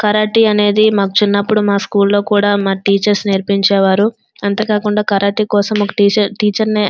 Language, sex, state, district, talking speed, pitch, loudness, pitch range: Telugu, female, Andhra Pradesh, Srikakulam, 85 wpm, 205 Hz, -13 LUFS, 200-210 Hz